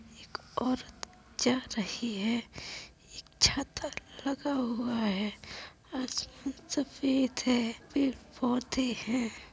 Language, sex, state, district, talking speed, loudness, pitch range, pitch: Hindi, female, Uttar Pradesh, Budaun, 100 wpm, -32 LUFS, 235-265 Hz, 250 Hz